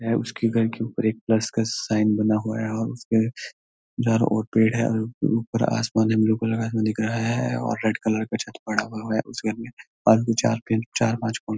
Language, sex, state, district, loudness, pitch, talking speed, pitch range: Hindi, male, Uttarakhand, Uttarkashi, -23 LUFS, 110 Hz, 220 wpm, 110-115 Hz